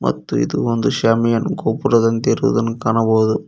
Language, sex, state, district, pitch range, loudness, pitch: Kannada, male, Karnataka, Koppal, 110-115 Hz, -17 LUFS, 115 Hz